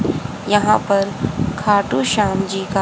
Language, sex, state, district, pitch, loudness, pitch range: Hindi, female, Haryana, Rohtak, 200 Hz, -18 LUFS, 195-205 Hz